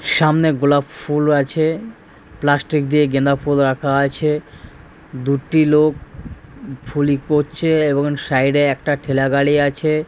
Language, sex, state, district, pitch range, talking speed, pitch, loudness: Bengali, male, West Bengal, Purulia, 140-150 Hz, 120 wpm, 145 Hz, -17 LUFS